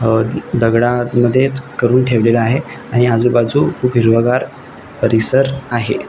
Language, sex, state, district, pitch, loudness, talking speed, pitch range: Marathi, male, Maharashtra, Nagpur, 120 Hz, -14 LUFS, 140 wpm, 115-130 Hz